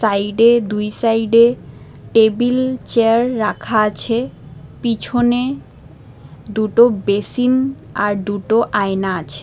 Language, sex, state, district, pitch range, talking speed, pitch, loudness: Bengali, female, Assam, Hailakandi, 200-240 Hz, 90 wpm, 220 Hz, -16 LUFS